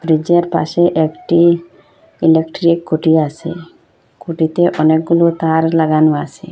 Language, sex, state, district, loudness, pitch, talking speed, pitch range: Bengali, female, Assam, Hailakandi, -14 LUFS, 165 Hz, 110 wpm, 160-170 Hz